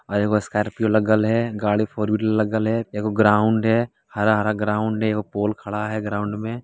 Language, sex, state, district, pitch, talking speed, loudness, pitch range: Hindi, male, Bihar, Jamui, 110 Hz, 200 wpm, -21 LUFS, 105-110 Hz